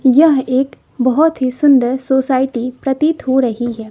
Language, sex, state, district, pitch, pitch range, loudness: Hindi, female, Bihar, West Champaran, 265 Hz, 250-280 Hz, -15 LUFS